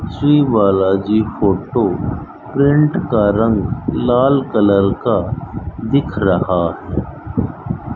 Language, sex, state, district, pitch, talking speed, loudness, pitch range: Hindi, male, Rajasthan, Bikaner, 110 Hz, 90 wpm, -16 LUFS, 100-140 Hz